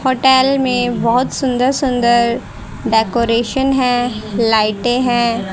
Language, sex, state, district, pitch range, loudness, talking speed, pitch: Hindi, female, Haryana, Charkhi Dadri, 230-260 Hz, -15 LUFS, 100 wpm, 245 Hz